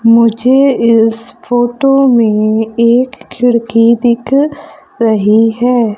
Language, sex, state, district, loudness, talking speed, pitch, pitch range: Hindi, female, Madhya Pradesh, Umaria, -10 LUFS, 90 wpm, 235 Hz, 225-250 Hz